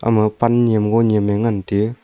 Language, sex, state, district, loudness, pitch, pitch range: Wancho, male, Arunachal Pradesh, Longding, -17 LUFS, 110 Hz, 105-115 Hz